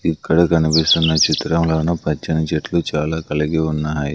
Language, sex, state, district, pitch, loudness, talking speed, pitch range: Telugu, male, Andhra Pradesh, Sri Satya Sai, 80 Hz, -17 LUFS, 115 wpm, 75-85 Hz